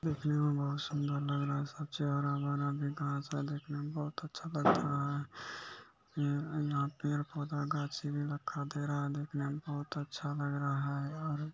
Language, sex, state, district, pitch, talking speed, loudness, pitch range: Hindi, male, Bihar, Araria, 145 Hz, 135 wpm, -36 LUFS, 140-150 Hz